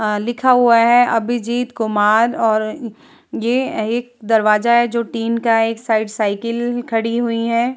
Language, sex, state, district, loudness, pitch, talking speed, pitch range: Hindi, female, Bihar, Vaishali, -17 LUFS, 230 Hz, 170 wpm, 220-240 Hz